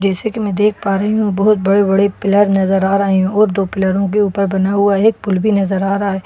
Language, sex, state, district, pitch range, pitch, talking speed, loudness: Hindi, female, Bihar, Katihar, 195-205 Hz, 200 Hz, 280 wpm, -14 LUFS